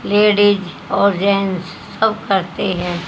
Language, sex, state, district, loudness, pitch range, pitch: Hindi, female, Haryana, Jhajjar, -16 LUFS, 185-205 Hz, 200 Hz